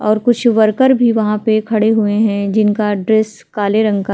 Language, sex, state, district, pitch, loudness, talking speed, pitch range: Hindi, female, Bihar, Vaishali, 215 Hz, -14 LUFS, 215 wpm, 210-220 Hz